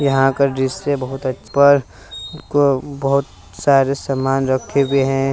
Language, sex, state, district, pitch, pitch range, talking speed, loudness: Hindi, male, Bihar, West Champaran, 135 Hz, 130-140 Hz, 100 wpm, -17 LUFS